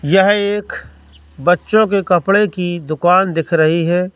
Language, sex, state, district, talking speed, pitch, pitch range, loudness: Hindi, male, Madhya Pradesh, Katni, 145 wpm, 175 Hz, 160-195 Hz, -15 LUFS